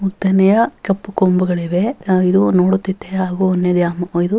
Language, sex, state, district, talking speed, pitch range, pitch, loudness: Kannada, female, Karnataka, Dharwad, 95 wpm, 180-195 Hz, 190 Hz, -16 LUFS